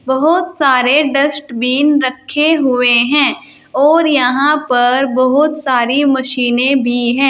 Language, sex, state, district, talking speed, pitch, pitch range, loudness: Hindi, female, Uttar Pradesh, Saharanpur, 115 wpm, 270 Hz, 250-295 Hz, -12 LUFS